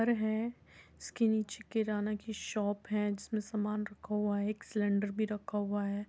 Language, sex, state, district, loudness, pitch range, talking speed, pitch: Hindi, female, Uttar Pradesh, Muzaffarnagar, -35 LUFS, 205-215 Hz, 195 wpm, 210 Hz